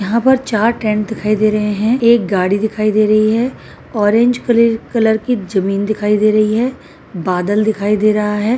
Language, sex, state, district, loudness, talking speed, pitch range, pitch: Hindi, female, Uttar Pradesh, Etah, -14 LUFS, 195 wpm, 210-230 Hz, 215 Hz